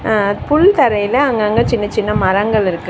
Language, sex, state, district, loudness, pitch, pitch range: Tamil, female, Tamil Nadu, Chennai, -14 LUFS, 215 Hz, 200-235 Hz